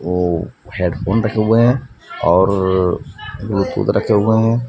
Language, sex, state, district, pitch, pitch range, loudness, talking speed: Hindi, male, Bihar, West Champaran, 105 Hz, 90-115 Hz, -16 LUFS, 125 wpm